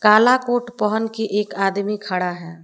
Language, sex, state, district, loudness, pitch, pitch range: Hindi, female, Jharkhand, Palamu, -20 LUFS, 210 Hz, 195-225 Hz